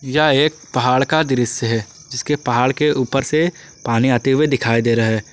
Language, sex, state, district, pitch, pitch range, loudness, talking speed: Hindi, male, Jharkhand, Ranchi, 130 Hz, 120-150 Hz, -17 LUFS, 200 wpm